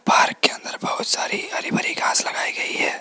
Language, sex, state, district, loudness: Hindi, male, Rajasthan, Jaipur, -21 LUFS